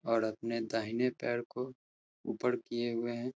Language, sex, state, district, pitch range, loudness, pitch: Hindi, male, Uttar Pradesh, Hamirpur, 115-125 Hz, -36 LUFS, 120 Hz